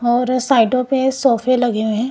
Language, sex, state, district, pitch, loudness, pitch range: Hindi, female, Punjab, Kapurthala, 255 Hz, -16 LUFS, 235-260 Hz